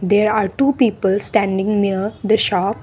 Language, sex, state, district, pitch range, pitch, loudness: English, female, Assam, Kamrup Metropolitan, 195-220 Hz, 210 Hz, -17 LUFS